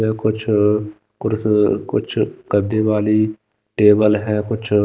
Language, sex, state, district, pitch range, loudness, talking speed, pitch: Hindi, male, Himachal Pradesh, Shimla, 105-110 Hz, -18 LUFS, 125 wpm, 105 Hz